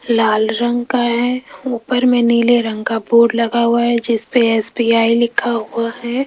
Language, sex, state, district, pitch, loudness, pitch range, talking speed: Hindi, female, Rajasthan, Jaipur, 235 Hz, -15 LUFS, 230-240 Hz, 170 wpm